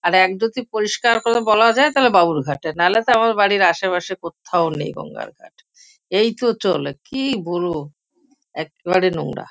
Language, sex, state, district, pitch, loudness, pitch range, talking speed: Bengali, female, West Bengal, Kolkata, 200 Hz, -18 LUFS, 170-235 Hz, 170 wpm